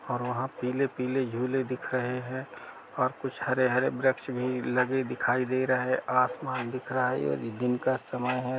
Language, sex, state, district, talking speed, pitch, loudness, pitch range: Hindi, male, Uttar Pradesh, Jalaun, 180 wpm, 125 Hz, -29 LUFS, 125-130 Hz